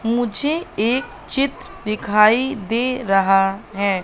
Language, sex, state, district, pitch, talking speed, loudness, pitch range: Hindi, female, Madhya Pradesh, Katni, 225 Hz, 105 wpm, -19 LUFS, 200-255 Hz